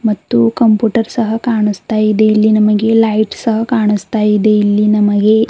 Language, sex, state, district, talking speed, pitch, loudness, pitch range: Kannada, female, Karnataka, Bidar, 140 wpm, 215 Hz, -12 LUFS, 210-225 Hz